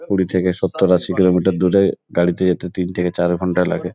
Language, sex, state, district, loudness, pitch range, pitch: Bengali, male, West Bengal, Kolkata, -17 LUFS, 90-95 Hz, 90 Hz